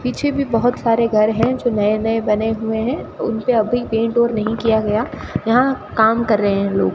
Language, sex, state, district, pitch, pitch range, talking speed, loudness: Hindi, female, Rajasthan, Bikaner, 225 Hz, 220-245 Hz, 235 wpm, -18 LUFS